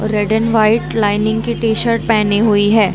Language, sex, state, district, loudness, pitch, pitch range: Hindi, female, Chhattisgarh, Bilaspur, -14 LUFS, 220 Hz, 210-225 Hz